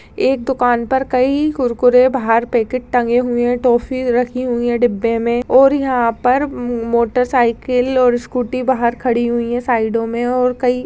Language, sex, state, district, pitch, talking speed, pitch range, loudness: Hindi, female, Bihar, Purnia, 245 Hz, 175 wpm, 235-255 Hz, -16 LUFS